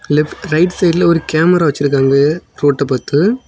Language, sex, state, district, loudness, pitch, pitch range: Tamil, male, Tamil Nadu, Kanyakumari, -13 LUFS, 155 Hz, 145-175 Hz